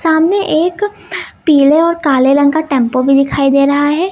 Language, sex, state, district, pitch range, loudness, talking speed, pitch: Hindi, female, Uttar Pradesh, Lucknow, 275-335 Hz, -12 LUFS, 190 wpm, 295 Hz